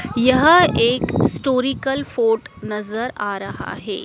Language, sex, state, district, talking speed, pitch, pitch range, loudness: Hindi, female, Madhya Pradesh, Dhar, 120 wpm, 260 Hz, 230-285 Hz, -18 LUFS